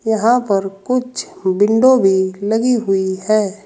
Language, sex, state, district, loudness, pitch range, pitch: Hindi, male, Uttar Pradesh, Saharanpur, -16 LUFS, 195-240 Hz, 210 Hz